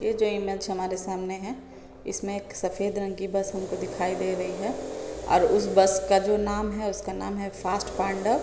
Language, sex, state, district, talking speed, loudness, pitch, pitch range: Hindi, female, Jharkhand, Sahebganj, 200 wpm, -27 LUFS, 195 Hz, 190-210 Hz